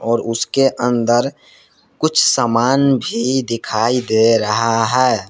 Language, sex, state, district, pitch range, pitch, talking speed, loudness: Hindi, male, Jharkhand, Palamu, 115-130 Hz, 120 Hz, 115 wpm, -16 LUFS